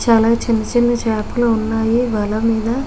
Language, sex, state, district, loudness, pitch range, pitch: Telugu, female, Andhra Pradesh, Guntur, -17 LUFS, 225-240 Hz, 225 Hz